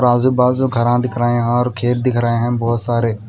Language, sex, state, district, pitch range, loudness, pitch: Hindi, male, Odisha, Malkangiri, 120-125 Hz, -16 LUFS, 120 Hz